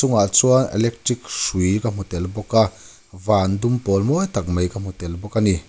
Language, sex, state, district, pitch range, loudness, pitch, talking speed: Mizo, male, Mizoram, Aizawl, 95-115 Hz, -20 LUFS, 100 Hz, 180 wpm